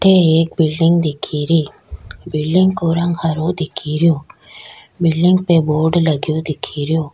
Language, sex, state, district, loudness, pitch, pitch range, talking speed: Rajasthani, female, Rajasthan, Churu, -16 LUFS, 160 Hz, 155-170 Hz, 125 wpm